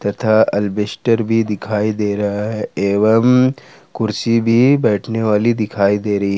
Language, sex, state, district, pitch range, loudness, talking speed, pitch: Hindi, male, Jharkhand, Ranchi, 105-115 Hz, -16 LUFS, 140 wpm, 110 Hz